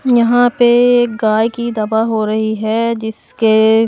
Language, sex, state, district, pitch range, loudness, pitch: Hindi, female, Maharashtra, Washim, 220-240 Hz, -14 LUFS, 225 Hz